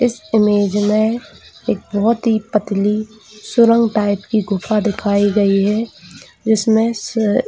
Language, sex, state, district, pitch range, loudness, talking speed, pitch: Hindi, female, Chhattisgarh, Raigarh, 205-225 Hz, -16 LUFS, 130 wpm, 215 Hz